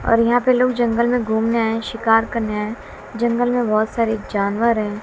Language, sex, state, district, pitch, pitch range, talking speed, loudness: Hindi, female, Bihar, West Champaran, 230 Hz, 220-235 Hz, 205 wpm, -19 LUFS